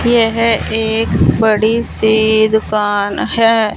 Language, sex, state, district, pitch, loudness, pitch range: Hindi, female, Punjab, Fazilka, 220 Hz, -13 LUFS, 220-230 Hz